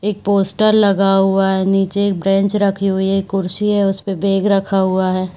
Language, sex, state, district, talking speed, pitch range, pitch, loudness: Hindi, female, Bihar, Saharsa, 215 wpm, 190-200 Hz, 195 Hz, -15 LUFS